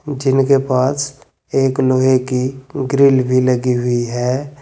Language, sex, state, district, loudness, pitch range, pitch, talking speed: Hindi, male, Uttar Pradesh, Saharanpur, -16 LUFS, 125-135 Hz, 130 Hz, 130 wpm